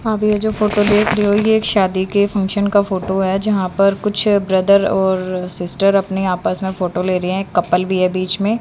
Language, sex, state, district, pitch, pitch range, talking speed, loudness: Hindi, female, Haryana, Charkhi Dadri, 195 Hz, 185-205 Hz, 230 wpm, -16 LUFS